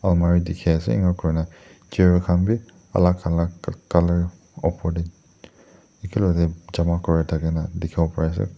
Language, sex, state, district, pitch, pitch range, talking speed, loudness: Nagamese, male, Nagaland, Dimapur, 85 Hz, 85-90 Hz, 125 wpm, -22 LUFS